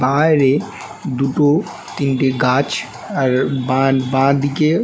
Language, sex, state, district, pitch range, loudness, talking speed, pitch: Bengali, male, West Bengal, North 24 Parganas, 130-145 Hz, -17 LUFS, 85 wpm, 135 Hz